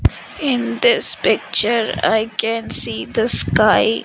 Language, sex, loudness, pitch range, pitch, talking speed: English, female, -16 LUFS, 225-270 Hz, 235 Hz, 120 wpm